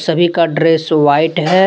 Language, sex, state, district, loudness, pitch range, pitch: Hindi, male, Jharkhand, Deoghar, -13 LUFS, 160-170 Hz, 165 Hz